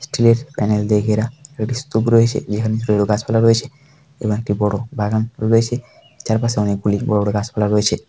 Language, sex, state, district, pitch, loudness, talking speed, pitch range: Bengali, male, West Bengal, Paschim Medinipur, 110 Hz, -18 LUFS, 170 wpm, 105-115 Hz